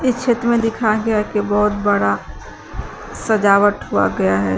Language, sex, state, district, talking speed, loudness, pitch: Hindi, female, Uttar Pradesh, Shamli, 155 wpm, -17 LUFS, 210 Hz